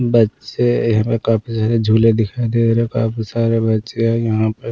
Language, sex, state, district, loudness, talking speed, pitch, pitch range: Hindi, male, Punjab, Pathankot, -17 LUFS, 190 wpm, 115 Hz, 110-115 Hz